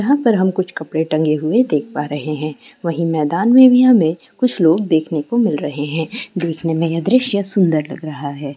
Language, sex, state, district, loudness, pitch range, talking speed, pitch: Hindi, female, Andhra Pradesh, Chittoor, -16 LUFS, 155-215 Hz, 215 wpm, 165 Hz